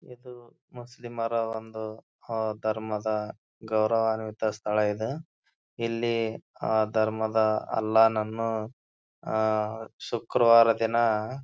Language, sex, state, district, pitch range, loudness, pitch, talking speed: Kannada, male, Karnataka, Bijapur, 110-115 Hz, -27 LUFS, 110 Hz, 80 wpm